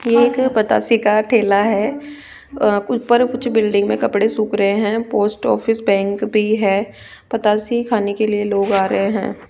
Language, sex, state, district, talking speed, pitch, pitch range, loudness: Hindi, female, Rajasthan, Jaipur, 175 wpm, 215 Hz, 205-235 Hz, -17 LUFS